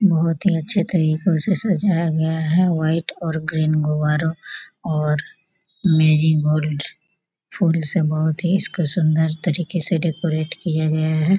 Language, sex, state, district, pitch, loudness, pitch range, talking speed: Hindi, female, Bihar, Gopalganj, 165 Hz, -19 LUFS, 155-175 Hz, 155 wpm